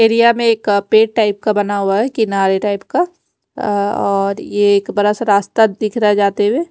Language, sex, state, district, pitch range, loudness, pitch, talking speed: Hindi, female, Punjab, Fazilka, 200-225 Hz, -15 LUFS, 205 Hz, 215 wpm